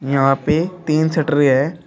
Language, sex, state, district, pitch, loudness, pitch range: Hindi, male, Uttar Pradesh, Shamli, 155 Hz, -17 LUFS, 135-160 Hz